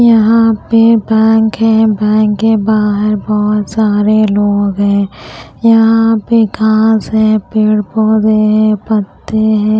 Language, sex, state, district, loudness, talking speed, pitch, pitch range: Hindi, female, Maharashtra, Gondia, -11 LUFS, 120 wpm, 215 Hz, 210-220 Hz